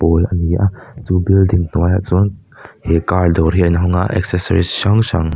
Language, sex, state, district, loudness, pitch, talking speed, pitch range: Mizo, male, Mizoram, Aizawl, -15 LUFS, 90 Hz, 190 wpm, 85-95 Hz